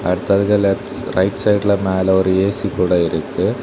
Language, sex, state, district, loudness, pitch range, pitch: Tamil, male, Tamil Nadu, Kanyakumari, -17 LUFS, 90-100 Hz, 95 Hz